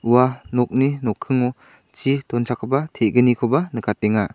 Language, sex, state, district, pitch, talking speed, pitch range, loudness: Garo, male, Meghalaya, South Garo Hills, 125 Hz, 95 wpm, 115-130 Hz, -20 LUFS